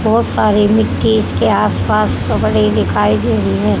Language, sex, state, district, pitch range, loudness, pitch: Hindi, female, Haryana, Rohtak, 100-110 Hz, -14 LUFS, 105 Hz